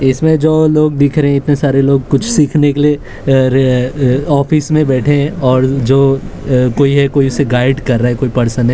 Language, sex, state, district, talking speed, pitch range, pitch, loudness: Hindi, male, Maharashtra, Mumbai Suburban, 220 wpm, 130-145 Hz, 140 Hz, -12 LUFS